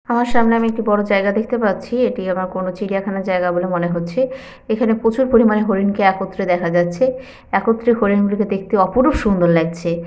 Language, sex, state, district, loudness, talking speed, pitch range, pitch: Bengali, female, West Bengal, Malda, -17 LUFS, 175 wpm, 185-235 Hz, 205 Hz